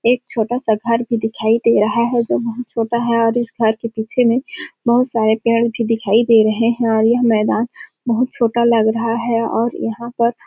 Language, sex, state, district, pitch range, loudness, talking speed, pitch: Hindi, female, Chhattisgarh, Sarguja, 225-235 Hz, -17 LUFS, 220 wpm, 230 Hz